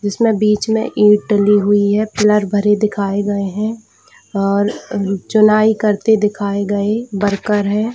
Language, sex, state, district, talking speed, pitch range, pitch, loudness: Hindi, female, Chhattisgarh, Bilaspur, 145 wpm, 200-215 Hz, 210 Hz, -15 LUFS